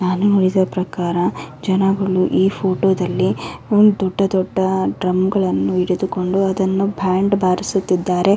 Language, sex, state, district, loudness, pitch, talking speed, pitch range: Kannada, female, Karnataka, Raichur, -18 LUFS, 190 Hz, 115 wpm, 185-195 Hz